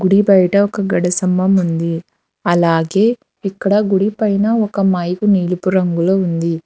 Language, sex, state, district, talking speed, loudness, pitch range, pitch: Telugu, female, Telangana, Hyderabad, 135 wpm, -15 LUFS, 175-200 Hz, 190 Hz